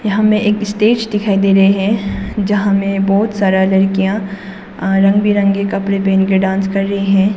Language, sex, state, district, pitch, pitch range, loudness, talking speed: Hindi, female, Arunachal Pradesh, Papum Pare, 195 Hz, 195-205 Hz, -14 LUFS, 170 wpm